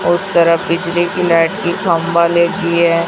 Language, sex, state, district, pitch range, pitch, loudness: Hindi, female, Chhattisgarh, Raipur, 170-175 Hz, 170 Hz, -14 LUFS